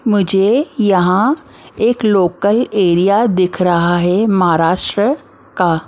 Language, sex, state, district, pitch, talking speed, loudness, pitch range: Hindi, female, Maharashtra, Mumbai Suburban, 195 Hz, 110 wpm, -14 LUFS, 180-215 Hz